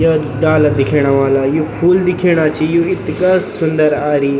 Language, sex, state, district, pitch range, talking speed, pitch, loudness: Garhwali, male, Uttarakhand, Tehri Garhwal, 145-170 Hz, 165 wpm, 155 Hz, -13 LUFS